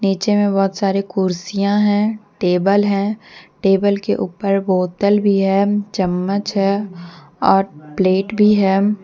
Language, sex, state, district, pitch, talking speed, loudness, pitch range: Hindi, female, Jharkhand, Deoghar, 195 Hz, 135 wpm, -17 LUFS, 190-205 Hz